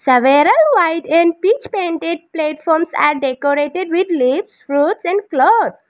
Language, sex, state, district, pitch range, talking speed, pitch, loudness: English, female, Arunachal Pradesh, Lower Dibang Valley, 285-350 Hz, 130 wpm, 325 Hz, -15 LUFS